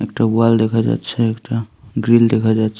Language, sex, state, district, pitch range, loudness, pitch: Bengali, male, Tripura, Unakoti, 110-115 Hz, -16 LUFS, 115 Hz